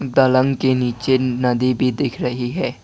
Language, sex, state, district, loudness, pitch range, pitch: Hindi, male, Assam, Kamrup Metropolitan, -18 LUFS, 125-135 Hz, 130 Hz